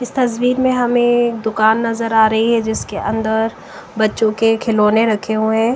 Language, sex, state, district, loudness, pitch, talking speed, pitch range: Hindi, female, Bihar, West Champaran, -16 LUFS, 225 Hz, 165 wpm, 220-235 Hz